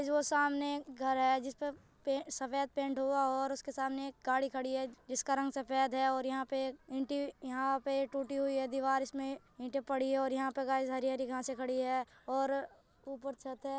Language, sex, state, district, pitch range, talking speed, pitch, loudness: Hindi, female, Uttar Pradesh, Jyotiba Phule Nagar, 265-275 Hz, 205 wpm, 270 Hz, -36 LUFS